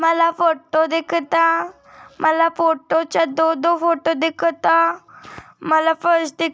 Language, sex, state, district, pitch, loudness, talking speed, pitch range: Marathi, male, Maharashtra, Dhule, 330 Hz, -18 LUFS, 120 wpm, 320-335 Hz